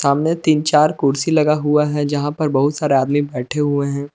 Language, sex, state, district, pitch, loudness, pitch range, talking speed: Hindi, male, Jharkhand, Palamu, 145 Hz, -17 LUFS, 140-150 Hz, 200 wpm